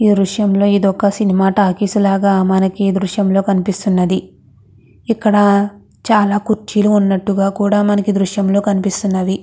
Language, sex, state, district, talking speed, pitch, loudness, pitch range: Telugu, female, Andhra Pradesh, Krishna, 120 wpm, 200 Hz, -14 LUFS, 195-205 Hz